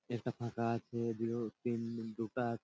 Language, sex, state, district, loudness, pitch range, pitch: Bengali, male, West Bengal, Purulia, -39 LUFS, 115-120 Hz, 115 Hz